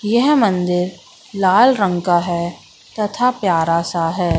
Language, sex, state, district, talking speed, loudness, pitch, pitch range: Hindi, female, Madhya Pradesh, Katni, 135 wpm, -17 LUFS, 180 Hz, 170-210 Hz